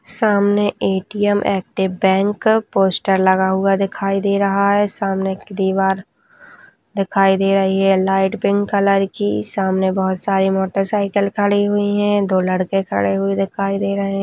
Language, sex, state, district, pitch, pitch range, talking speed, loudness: Hindi, female, Rajasthan, Nagaur, 195 Hz, 190-205 Hz, 165 wpm, -17 LUFS